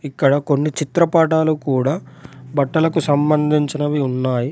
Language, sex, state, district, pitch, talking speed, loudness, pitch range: Telugu, male, Telangana, Adilabad, 150 Hz, 95 wpm, -18 LUFS, 135-155 Hz